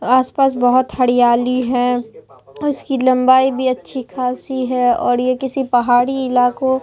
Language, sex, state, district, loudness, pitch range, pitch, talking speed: Hindi, female, Bihar, Katihar, -16 LUFS, 245-260 Hz, 255 Hz, 140 wpm